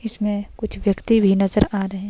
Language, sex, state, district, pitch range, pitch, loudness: Hindi, female, Himachal Pradesh, Shimla, 195-215 Hz, 205 Hz, -20 LUFS